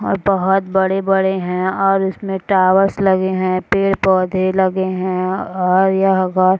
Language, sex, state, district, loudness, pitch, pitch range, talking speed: Hindi, female, Bihar, Purnia, -16 LUFS, 190 Hz, 185-195 Hz, 135 wpm